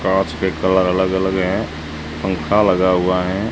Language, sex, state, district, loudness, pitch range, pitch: Hindi, male, Rajasthan, Jaisalmer, -18 LUFS, 90-95 Hz, 95 Hz